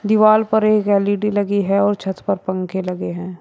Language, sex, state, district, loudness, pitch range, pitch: Hindi, male, Uttar Pradesh, Shamli, -18 LUFS, 190-210 Hz, 200 Hz